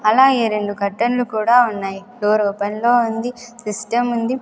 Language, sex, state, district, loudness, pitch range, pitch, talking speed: Telugu, female, Andhra Pradesh, Sri Satya Sai, -18 LUFS, 210-240 Hz, 230 Hz, 150 wpm